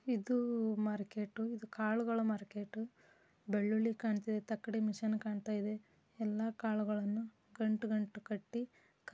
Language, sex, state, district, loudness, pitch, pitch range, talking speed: Kannada, female, Karnataka, Dharwad, -38 LUFS, 215 Hz, 210-225 Hz, 90 wpm